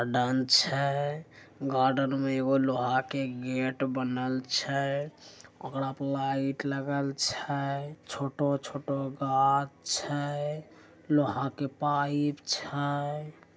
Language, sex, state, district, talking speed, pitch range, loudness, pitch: Angika, male, Bihar, Begusarai, 105 wpm, 135-145 Hz, -30 LUFS, 140 Hz